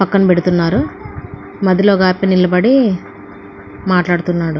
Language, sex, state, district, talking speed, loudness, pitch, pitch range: Telugu, female, Andhra Pradesh, Anantapur, 90 wpm, -14 LUFS, 180 Hz, 165-195 Hz